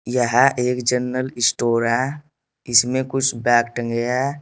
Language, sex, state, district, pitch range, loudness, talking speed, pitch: Hindi, male, Uttar Pradesh, Saharanpur, 120-130 Hz, -19 LUFS, 135 wpm, 125 Hz